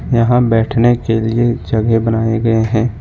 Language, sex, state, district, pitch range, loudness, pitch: Hindi, male, Jharkhand, Ranchi, 110-120 Hz, -14 LUFS, 115 Hz